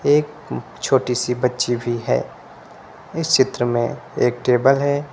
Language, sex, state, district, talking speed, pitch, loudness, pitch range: Hindi, male, Uttar Pradesh, Lucknow, 140 wpm, 125 Hz, -20 LUFS, 120-145 Hz